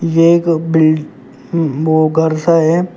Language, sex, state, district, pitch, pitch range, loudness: Hindi, male, Uttar Pradesh, Shamli, 160 Hz, 155-165 Hz, -13 LUFS